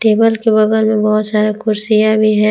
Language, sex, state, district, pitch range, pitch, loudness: Hindi, female, Jharkhand, Palamu, 215-220 Hz, 215 Hz, -13 LUFS